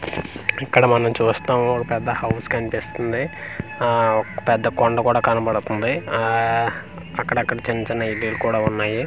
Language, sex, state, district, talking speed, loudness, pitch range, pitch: Telugu, male, Andhra Pradesh, Manyam, 140 wpm, -21 LUFS, 110-120 Hz, 115 Hz